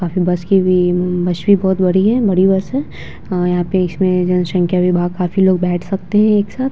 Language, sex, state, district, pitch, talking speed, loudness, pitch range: Hindi, female, Bihar, Vaishali, 185 Hz, 240 wpm, -15 LUFS, 180-195 Hz